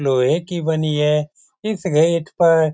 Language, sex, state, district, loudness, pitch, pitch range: Hindi, male, Bihar, Lakhisarai, -18 LUFS, 160 Hz, 150-170 Hz